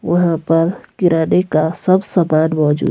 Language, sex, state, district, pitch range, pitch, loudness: Hindi, female, Himachal Pradesh, Shimla, 155-180 Hz, 165 Hz, -15 LUFS